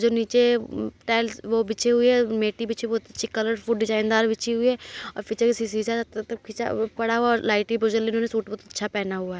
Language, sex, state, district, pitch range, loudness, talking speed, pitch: Hindi, male, Uttar Pradesh, Jalaun, 220-230 Hz, -24 LUFS, 165 wpm, 225 Hz